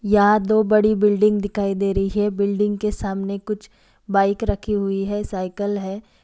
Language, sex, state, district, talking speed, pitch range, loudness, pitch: Hindi, female, Bihar, East Champaran, 180 wpm, 200-210 Hz, -21 LUFS, 205 Hz